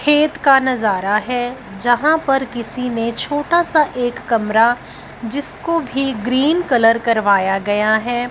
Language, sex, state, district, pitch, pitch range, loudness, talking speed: Hindi, female, Punjab, Fazilka, 245 Hz, 230-285 Hz, -17 LUFS, 135 wpm